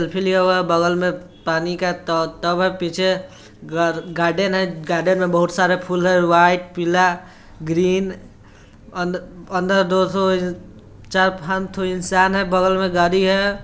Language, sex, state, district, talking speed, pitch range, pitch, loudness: Hindi, male, Bihar, Sitamarhi, 155 wpm, 175-185 Hz, 180 Hz, -19 LUFS